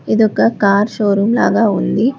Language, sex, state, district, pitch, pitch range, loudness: Telugu, female, Telangana, Hyderabad, 215 Hz, 200-230 Hz, -14 LUFS